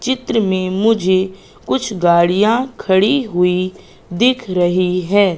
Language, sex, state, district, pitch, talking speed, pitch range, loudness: Hindi, female, Madhya Pradesh, Katni, 190 Hz, 110 wpm, 180-225 Hz, -16 LUFS